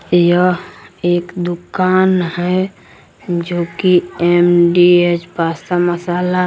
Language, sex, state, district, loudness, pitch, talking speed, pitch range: Hindi, male, Jharkhand, Palamu, -14 LUFS, 175 Hz, 85 wpm, 175-180 Hz